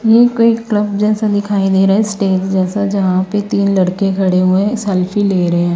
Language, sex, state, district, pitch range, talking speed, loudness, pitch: Hindi, female, Himachal Pradesh, Shimla, 190-210 Hz, 210 wpm, -14 LUFS, 200 Hz